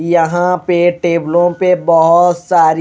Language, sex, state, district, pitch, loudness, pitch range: Hindi, male, Haryana, Rohtak, 175 Hz, -12 LUFS, 165-175 Hz